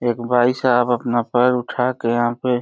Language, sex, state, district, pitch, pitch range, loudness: Hindi, male, Uttar Pradesh, Deoria, 120 Hz, 120-125 Hz, -18 LUFS